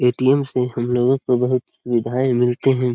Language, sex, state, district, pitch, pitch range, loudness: Hindi, male, Bihar, Lakhisarai, 125 Hz, 125-130 Hz, -19 LUFS